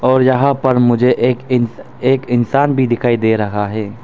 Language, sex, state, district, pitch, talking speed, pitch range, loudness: Hindi, male, Arunachal Pradesh, Papum Pare, 125 Hz, 195 wpm, 120-130 Hz, -14 LUFS